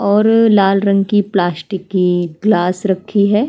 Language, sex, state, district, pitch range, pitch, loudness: Hindi, female, Uttar Pradesh, Jalaun, 180-205 Hz, 195 Hz, -14 LUFS